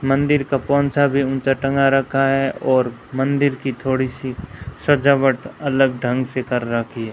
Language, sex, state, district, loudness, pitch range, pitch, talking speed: Hindi, female, Rajasthan, Bikaner, -19 LUFS, 130-140 Hz, 135 Hz, 170 wpm